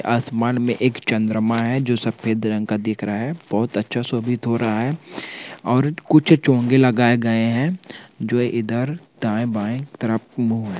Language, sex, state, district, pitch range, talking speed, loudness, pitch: Hindi, male, Bihar, Purnia, 110-130 Hz, 165 wpm, -20 LUFS, 120 Hz